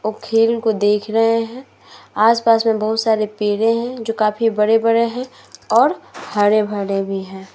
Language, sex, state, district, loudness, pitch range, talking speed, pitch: Hindi, female, Uttar Pradesh, Muzaffarnagar, -17 LUFS, 210-230 Hz, 165 wpm, 220 Hz